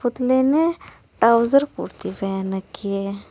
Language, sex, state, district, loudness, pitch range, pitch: Hindi, female, Uttar Pradesh, Saharanpur, -20 LUFS, 195-270 Hz, 235 Hz